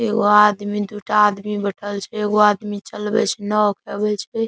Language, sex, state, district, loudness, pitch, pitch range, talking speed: Maithili, male, Bihar, Saharsa, -19 LUFS, 210 Hz, 205-210 Hz, 185 wpm